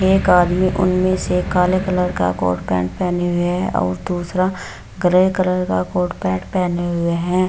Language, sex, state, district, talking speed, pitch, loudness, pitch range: Hindi, female, Bihar, Samastipur, 175 wpm, 180 Hz, -18 LUFS, 170-185 Hz